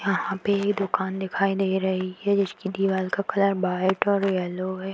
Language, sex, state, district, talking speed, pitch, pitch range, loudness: Hindi, female, Bihar, Darbhanga, 180 wpm, 195 Hz, 190-195 Hz, -25 LUFS